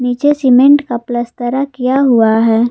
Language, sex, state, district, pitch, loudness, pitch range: Hindi, female, Jharkhand, Garhwa, 250 Hz, -12 LUFS, 240-275 Hz